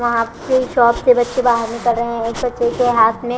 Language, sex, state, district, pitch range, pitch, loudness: Hindi, female, Punjab, Kapurthala, 235-245 Hz, 240 Hz, -16 LUFS